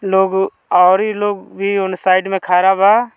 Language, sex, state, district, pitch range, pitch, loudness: Bhojpuri, male, Bihar, Muzaffarpur, 185-200 Hz, 190 Hz, -14 LUFS